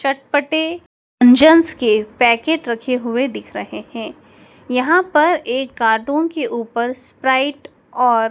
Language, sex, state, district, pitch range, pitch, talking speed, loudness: Hindi, male, Madhya Pradesh, Dhar, 235-305 Hz, 260 Hz, 125 wpm, -16 LUFS